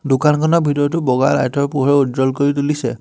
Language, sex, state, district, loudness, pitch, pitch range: Assamese, male, Assam, Hailakandi, -16 LUFS, 140 Hz, 135-145 Hz